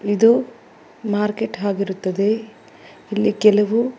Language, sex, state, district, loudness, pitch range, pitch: Kannada, female, Karnataka, Bangalore, -19 LUFS, 205-225 Hz, 210 Hz